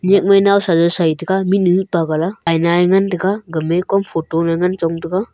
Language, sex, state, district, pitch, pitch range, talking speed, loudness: Wancho, male, Arunachal Pradesh, Longding, 180 Hz, 165-195 Hz, 200 wpm, -15 LUFS